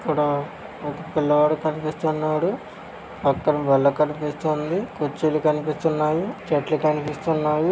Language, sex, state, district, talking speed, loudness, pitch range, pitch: Telugu, male, Andhra Pradesh, Krishna, 85 wpm, -23 LUFS, 150-155 Hz, 155 Hz